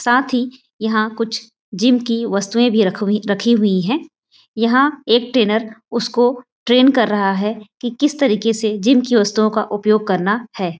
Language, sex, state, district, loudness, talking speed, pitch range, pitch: Hindi, female, Chhattisgarh, Raigarh, -17 LUFS, 180 wpm, 210-245 Hz, 230 Hz